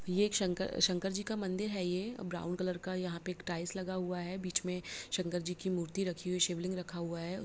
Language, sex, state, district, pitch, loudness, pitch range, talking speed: Hindi, female, Bihar, Lakhisarai, 180 Hz, -36 LUFS, 175-190 Hz, 260 wpm